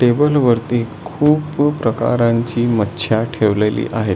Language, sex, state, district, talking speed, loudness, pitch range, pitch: Marathi, male, Maharashtra, Solapur, 115 wpm, -16 LUFS, 115-145 Hz, 120 Hz